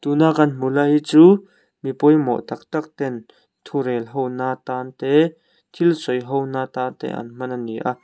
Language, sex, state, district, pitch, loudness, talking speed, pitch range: Mizo, male, Mizoram, Aizawl, 135 Hz, -19 LUFS, 210 wpm, 125-155 Hz